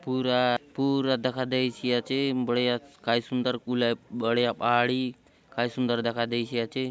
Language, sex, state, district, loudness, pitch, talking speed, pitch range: Halbi, male, Chhattisgarh, Bastar, -27 LUFS, 125 Hz, 140 wpm, 120-130 Hz